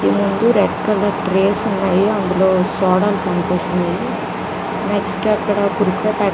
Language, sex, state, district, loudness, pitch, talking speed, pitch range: Telugu, female, Telangana, Karimnagar, -17 LUFS, 195 Hz, 125 wpm, 185-205 Hz